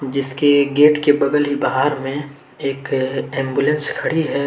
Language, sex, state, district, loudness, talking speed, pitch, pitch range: Hindi, male, Jharkhand, Deoghar, -18 LUFS, 135 wpm, 140 Hz, 135-145 Hz